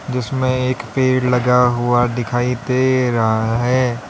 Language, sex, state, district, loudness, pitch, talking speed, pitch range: Hindi, male, Uttar Pradesh, Lalitpur, -17 LUFS, 125 Hz, 130 wpm, 120-130 Hz